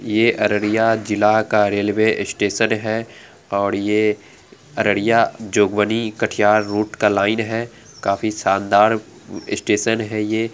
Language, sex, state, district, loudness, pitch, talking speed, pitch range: Angika, female, Bihar, Araria, -18 LUFS, 105 Hz, 120 wpm, 105-110 Hz